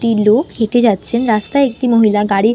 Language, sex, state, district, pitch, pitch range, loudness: Bengali, female, West Bengal, North 24 Parganas, 230 Hz, 215-240 Hz, -13 LUFS